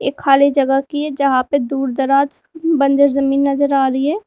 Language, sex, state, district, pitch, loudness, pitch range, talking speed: Hindi, female, Uttar Pradesh, Lalitpur, 275 Hz, -16 LUFS, 275-285 Hz, 210 wpm